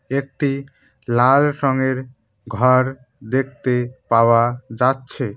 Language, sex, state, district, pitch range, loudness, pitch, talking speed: Bengali, male, West Bengal, Cooch Behar, 120-135 Hz, -19 LUFS, 130 Hz, 80 wpm